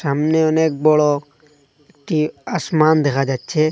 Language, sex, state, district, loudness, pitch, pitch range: Bengali, male, Assam, Hailakandi, -17 LUFS, 155 Hz, 145-160 Hz